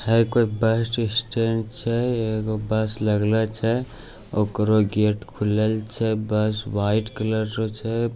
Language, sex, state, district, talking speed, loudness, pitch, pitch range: Angika, male, Bihar, Bhagalpur, 140 wpm, -23 LUFS, 110 Hz, 105-115 Hz